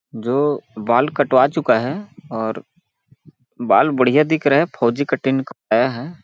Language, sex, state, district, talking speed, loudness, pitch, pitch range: Hindi, male, Chhattisgarh, Balrampur, 145 wpm, -18 LUFS, 135 Hz, 120-150 Hz